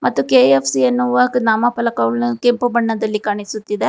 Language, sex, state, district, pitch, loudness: Kannada, female, Karnataka, Bangalore, 215 Hz, -16 LUFS